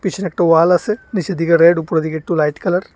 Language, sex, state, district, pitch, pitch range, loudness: Bengali, male, Tripura, West Tripura, 175 Hz, 165-190 Hz, -15 LUFS